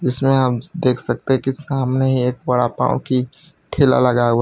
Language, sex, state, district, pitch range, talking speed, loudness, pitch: Hindi, male, Gujarat, Valsad, 125-135 Hz, 205 wpm, -18 LUFS, 130 Hz